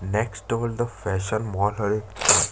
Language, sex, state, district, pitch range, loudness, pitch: Chhattisgarhi, male, Chhattisgarh, Sarguja, 100-115 Hz, -24 LUFS, 105 Hz